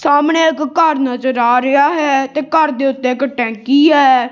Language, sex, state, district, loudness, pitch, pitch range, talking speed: Punjabi, female, Punjab, Kapurthala, -13 LUFS, 280 Hz, 255-300 Hz, 180 wpm